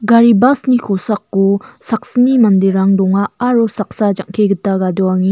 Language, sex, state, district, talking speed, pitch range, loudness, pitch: Garo, female, Meghalaya, North Garo Hills, 145 wpm, 195-235 Hz, -13 LUFS, 205 Hz